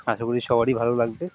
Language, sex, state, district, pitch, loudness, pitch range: Bengali, male, West Bengal, North 24 Parganas, 120 Hz, -23 LUFS, 115-125 Hz